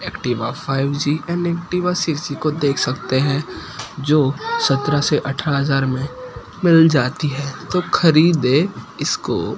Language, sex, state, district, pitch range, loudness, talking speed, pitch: Hindi, male, Gujarat, Gandhinagar, 135-165 Hz, -18 LUFS, 145 wpm, 145 Hz